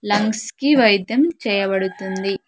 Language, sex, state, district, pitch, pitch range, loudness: Telugu, female, Andhra Pradesh, Sri Satya Sai, 205 Hz, 195-230 Hz, -18 LUFS